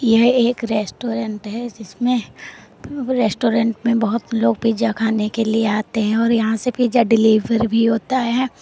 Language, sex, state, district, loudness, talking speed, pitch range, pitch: Hindi, female, Uttar Pradesh, Lalitpur, -18 LUFS, 160 wpm, 220-240 Hz, 230 Hz